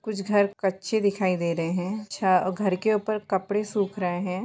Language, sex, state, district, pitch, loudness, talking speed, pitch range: Hindi, female, Jharkhand, Sahebganj, 195 Hz, -26 LUFS, 215 wpm, 185-210 Hz